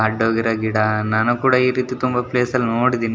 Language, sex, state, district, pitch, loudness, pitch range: Kannada, male, Karnataka, Shimoga, 120 Hz, -18 LUFS, 110-125 Hz